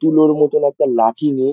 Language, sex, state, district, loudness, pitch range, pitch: Bengali, male, West Bengal, Dakshin Dinajpur, -15 LUFS, 135-150 Hz, 150 Hz